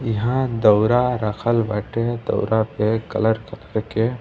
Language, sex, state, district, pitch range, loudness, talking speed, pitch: Bhojpuri, male, Bihar, East Champaran, 110-120 Hz, -20 LUFS, 115 wpm, 110 Hz